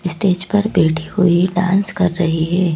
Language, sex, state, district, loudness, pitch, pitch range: Hindi, female, Madhya Pradesh, Bhopal, -15 LUFS, 180 Hz, 170-190 Hz